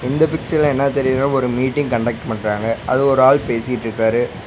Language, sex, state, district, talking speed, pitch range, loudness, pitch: Tamil, male, Tamil Nadu, Nilgiris, 160 wpm, 120-140 Hz, -17 LUFS, 130 Hz